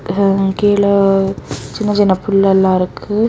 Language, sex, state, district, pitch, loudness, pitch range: Tamil, female, Tamil Nadu, Kanyakumari, 195 Hz, -14 LUFS, 190-205 Hz